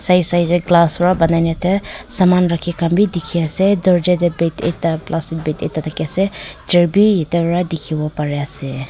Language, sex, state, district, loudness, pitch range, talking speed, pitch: Nagamese, female, Nagaland, Kohima, -16 LUFS, 160-180 Hz, 195 wpm, 170 Hz